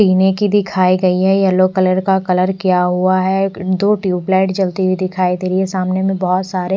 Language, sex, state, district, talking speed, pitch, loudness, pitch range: Hindi, male, Odisha, Nuapada, 220 wpm, 185 Hz, -15 LUFS, 185-190 Hz